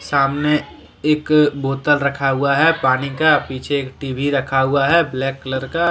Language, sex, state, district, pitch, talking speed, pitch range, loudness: Hindi, male, Jharkhand, Deoghar, 140 Hz, 160 wpm, 135-150 Hz, -17 LUFS